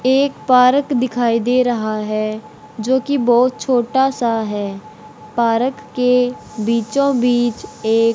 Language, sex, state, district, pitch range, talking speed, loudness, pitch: Hindi, male, Haryana, Rohtak, 220-255 Hz, 120 wpm, -17 LUFS, 240 Hz